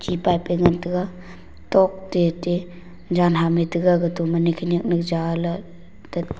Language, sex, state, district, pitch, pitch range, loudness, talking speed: Wancho, male, Arunachal Pradesh, Longding, 175 Hz, 170-180 Hz, -21 LUFS, 180 wpm